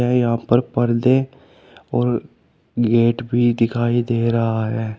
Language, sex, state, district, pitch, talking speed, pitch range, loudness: Hindi, male, Uttar Pradesh, Shamli, 120 Hz, 120 wpm, 115-120 Hz, -19 LUFS